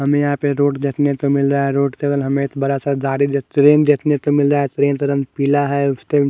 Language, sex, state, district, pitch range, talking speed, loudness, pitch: Hindi, male, Haryana, Charkhi Dadri, 140-145 Hz, 275 wpm, -17 LUFS, 140 Hz